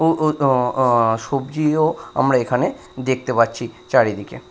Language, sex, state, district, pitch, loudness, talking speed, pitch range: Bengali, male, Odisha, Nuapada, 130 Hz, -19 LUFS, 145 wpm, 120-155 Hz